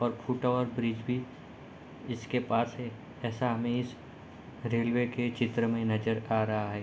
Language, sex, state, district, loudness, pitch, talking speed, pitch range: Hindi, male, Bihar, Sitamarhi, -32 LUFS, 120 Hz, 165 wpm, 115-125 Hz